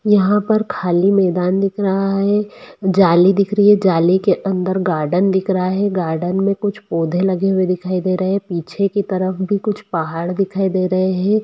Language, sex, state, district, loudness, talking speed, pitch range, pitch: Hindi, female, Jharkhand, Sahebganj, -17 LUFS, 200 wpm, 185-200 Hz, 190 Hz